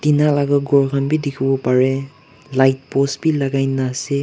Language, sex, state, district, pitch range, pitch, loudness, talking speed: Nagamese, male, Nagaland, Kohima, 135-145 Hz, 140 Hz, -18 LUFS, 200 wpm